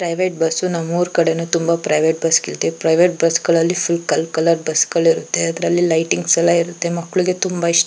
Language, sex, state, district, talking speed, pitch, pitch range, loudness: Kannada, female, Karnataka, Chamarajanagar, 185 wpm, 170 Hz, 165-175 Hz, -17 LUFS